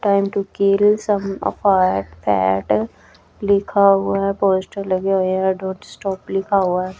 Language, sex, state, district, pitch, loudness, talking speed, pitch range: Hindi, female, Chhattisgarh, Raipur, 195 Hz, -18 LUFS, 145 wpm, 185-200 Hz